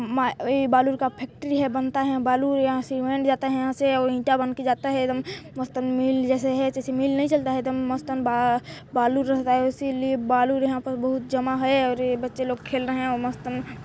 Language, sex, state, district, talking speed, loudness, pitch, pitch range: Hindi, female, Chhattisgarh, Balrampur, 225 wpm, -24 LUFS, 260 Hz, 255-265 Hz